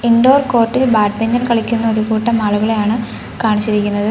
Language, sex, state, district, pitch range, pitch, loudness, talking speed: Malayalam, female, Kerala, Kollam, 215-235 Hz, 225 Hz, -14 LUFS, 130 wpm